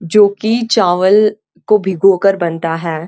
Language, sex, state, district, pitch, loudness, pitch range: Hindi, female, Uttarakhand, Uttarkashi, 195 Hz, -13 LUFS, 170-215 Hz